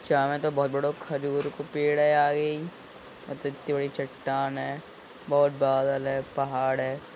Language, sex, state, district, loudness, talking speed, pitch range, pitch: Hindi, male, Uttar Pradesh, Budaun, -27 LUFS, 185 wpm, 135-145 Hz, 140 Hz